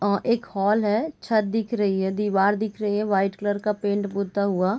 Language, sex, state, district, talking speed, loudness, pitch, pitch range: Hindi, female, Bihar, Sitamarhi, 240 wpm, -24 LUFS, 205 Hz, 200-215 Hz